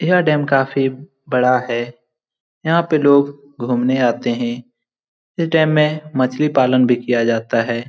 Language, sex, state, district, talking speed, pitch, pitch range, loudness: Hindi, male, Bihar, Lakhisarai, 150 wpm, 130 Hz, 120-150 Hz, -17 LUFS